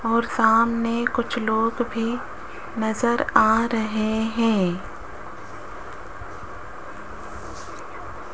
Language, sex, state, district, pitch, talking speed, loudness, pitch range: Hindi, female, Rajasthan, Jaipur, 230 Hz, 65 wpm, -22 LUFS, 220-235 Hz